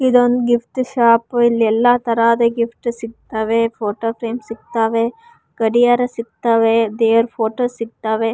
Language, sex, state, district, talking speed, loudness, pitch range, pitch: Kannada, female, Karnataka, Raichur, 115 wpm, -17 LUFS, 225-240 Hz, 230 Hz